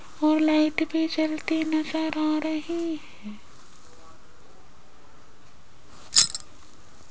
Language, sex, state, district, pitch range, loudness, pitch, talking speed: Hindi, female, Rajasthan, Jaipur, 310-320 Hz, -24 LUFS, 310 Hz, 65 wpm